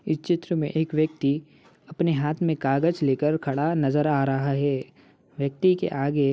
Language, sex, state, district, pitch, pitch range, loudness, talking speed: Hindi, male, Uttar Pradesh, Ghazipur, 150 Hz, 140-160 Hz, -24 LUFS, 180 wpm